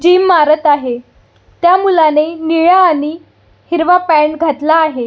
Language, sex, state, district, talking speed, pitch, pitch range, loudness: Marathi, female, Maharashtra, Solapur, 130 wpm, 325 Hz, 300-350 Hz, -11 LUFS